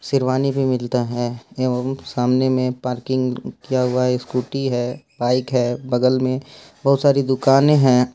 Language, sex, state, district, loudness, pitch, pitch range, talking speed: Hindi, male, Jharkhand, Ranchi, -19 LUFS, 130 Hz, 125-135 Hz, 145 wpm